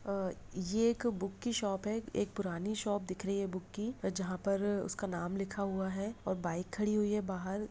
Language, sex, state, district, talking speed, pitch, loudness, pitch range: Hindi, female, Bihar, Begusarai, 220 wpm, 200 Hz, -36 LUFS, 190-210 Hz